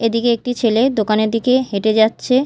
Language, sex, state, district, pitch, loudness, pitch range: Bengali, female, Odisha, Malkangiri, 230 Hz, -16 LUFS, 220-250 Hz